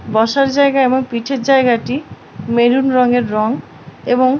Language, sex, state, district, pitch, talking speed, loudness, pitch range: Bengali, female, West Bengal, Paschim Medinipur, 255 Hz, 125 wpm, -15 LUFS, 240-270 Hz